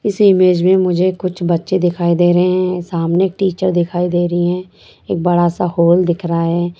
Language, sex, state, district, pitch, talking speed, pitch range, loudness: Hindi, female, Bihar, Sitamarhi, 175 Hz, 210 wpm, 175-185 Hz, -15 LUFS